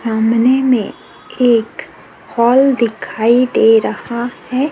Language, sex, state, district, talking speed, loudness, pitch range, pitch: Hindi, female, Chhattisgarh, Korba, 100 wpm, -14 LUFS, 225-255 Hz, 235 Hz